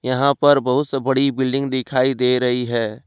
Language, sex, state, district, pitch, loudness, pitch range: Hindi, male, Jharkhand, Ranchi, 130 Hz, -18 LUFS, 125-135 Hz